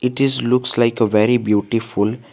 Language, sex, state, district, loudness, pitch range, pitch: English, male, Jharkhand, Garhwa, -17 LUFS, 110-125 Hz, 115 Hz